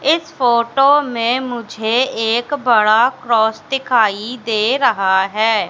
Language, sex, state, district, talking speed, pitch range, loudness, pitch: Hindi, female, Madhya Pradesh, Katni, 115 wpm, 220-260 Hz, -15 LUFS, 235 Hz